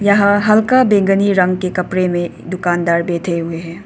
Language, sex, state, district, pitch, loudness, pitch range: Hindi, female, Arunachal Pradesh, Papum Pare, 185 Hz, -15 LUFS, 175-200 Hz